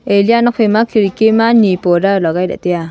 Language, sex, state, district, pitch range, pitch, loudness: Wancho, female, Arunachal Pradesh, Longding, 180-225 Hz, 200 Hz, -12 LUFS